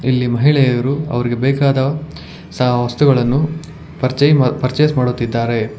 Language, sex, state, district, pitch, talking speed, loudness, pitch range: Kannada, male, Karnataka, Bangalore, 130 Hz, 95 wpm, -15 LUFS, 120-145 Hz